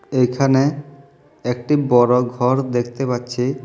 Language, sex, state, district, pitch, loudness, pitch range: Bengali, male, Tripura, South Tripura, 125 Hz, -18 LUFS, 125-135 Hz